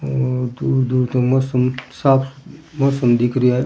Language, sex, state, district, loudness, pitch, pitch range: Rajasthani, male, Rajasthan, Churu, -18 LUFS, 130 Hz, 125-135 Hz